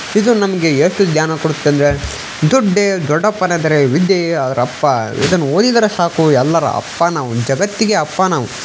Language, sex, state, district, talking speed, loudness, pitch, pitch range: Kannada, male, Karnataka, Bijapur, 125 wpm, -14 LUFS, 170 Hz, 150-195 Hz